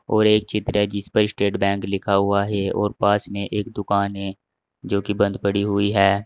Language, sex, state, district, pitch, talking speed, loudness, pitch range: Hindi, male, Uttar Pradesh, Saharanpur, 100 Hz, 220 wpm, -21 LUFS, 100-105 Hz